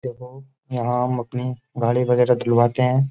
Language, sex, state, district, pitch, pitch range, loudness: Hindi, male, Uttar Pradesh, Jyotiba Phule Nagar, 125 Hz, 120-125 Hz, -21 LUFS